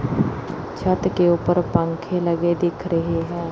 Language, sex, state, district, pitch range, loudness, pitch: Hindi, female, Chandigarh, Chandigarh, 170-175 Hz, -21 LUFS, 175 Hz